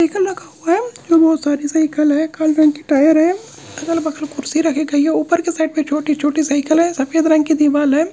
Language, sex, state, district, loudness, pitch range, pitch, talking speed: Hindi, male, Bihar, Purnia, -16 LUFS, 295-325 Hz, 310 Hz, 250 wpm